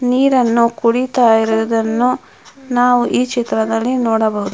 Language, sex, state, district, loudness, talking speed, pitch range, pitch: Kannada, female, Karnataka, Mysore, -15 LUFS, 90 wpm, 225-250 Hz, 240 Hz